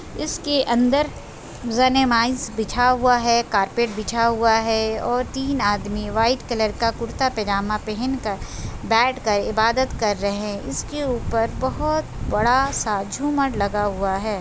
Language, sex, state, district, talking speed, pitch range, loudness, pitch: Hindi, female, Chhattisgarh, Bastar, 140 wpm, 210-255 Hz, -21 LUFS, 230 Hz